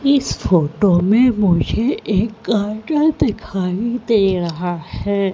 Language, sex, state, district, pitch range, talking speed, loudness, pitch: Hindi, female, Madhya Pradesh, Katni, 180-230 Hz, 110 wpm, -17 LUFS, 200 Hz